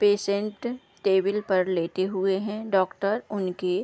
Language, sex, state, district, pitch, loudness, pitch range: Hindi, female, Bihar, East Champaran, 195 Hz, -26 LUFS, 190-210 Hz